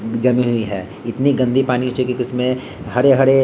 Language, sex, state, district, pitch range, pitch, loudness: Hindi, male, Bihar, Vaishali, 120-130 Hz, 125 Hz, -18 LUFS